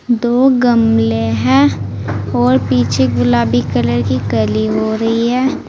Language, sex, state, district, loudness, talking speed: Hindi, female, Uttar Pradesh, Saharanpur, -14 LUFS, 125 wpm